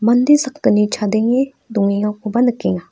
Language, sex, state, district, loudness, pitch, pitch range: Garo, female, Meghalaya, North Garo Hills, -16 LUFS, 225 Hz, 210-250 Hz